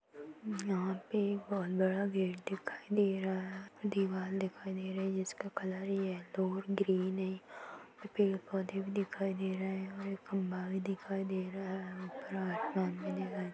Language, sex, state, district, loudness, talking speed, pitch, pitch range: Hindi, female, Chhattisgarh, Sarguja, -37 LUFS, 190 wpm, 190 Hz, 190-195 Hz